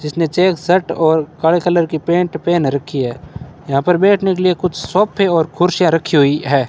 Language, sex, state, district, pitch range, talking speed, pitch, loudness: Hindi, male, Rajasthan, Bikaner, 155-180 Hz, 205 wpm, 165 Hz, -15 LUFS